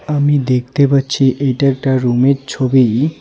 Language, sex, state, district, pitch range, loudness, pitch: Bengali, male, West Bengal, Alipurduar, 130-140 Hz, -14 LUFS, 135 Hz